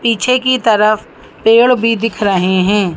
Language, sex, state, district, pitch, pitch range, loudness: Hindi, female, Madhya Pradesh, Bhopal, 225 Hz, 205-235 Hz, -12 LUFS